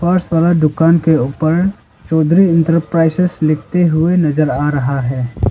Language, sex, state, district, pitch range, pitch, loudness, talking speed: Hindi, male, Arunachal Pradesh, Lower Dibang Valley, 155-170 Hz, 160 Hz, -14 LUFS, 140 wpm